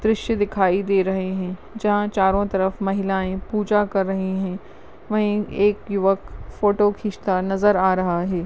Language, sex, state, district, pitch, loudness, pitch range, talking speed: Hindi, female, Goa, North and South Goa, 195 Hz, -21 LUFS, 190-205 Hz, 155 wpm